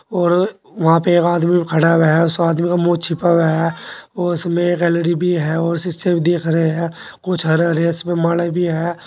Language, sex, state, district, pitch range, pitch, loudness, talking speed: Hindi, male, Uttar Pradesh, Saharanpur, 165-175 Hz, 170 Hz, -16 LUFS, 225 wpm